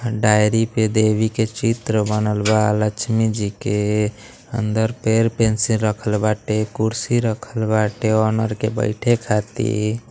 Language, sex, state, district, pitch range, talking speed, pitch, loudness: Bhojpuri, male, Uttar Pradesh, Deoria, 105-115 Hz, 130 wpm, 110 Hz, -19 LUFS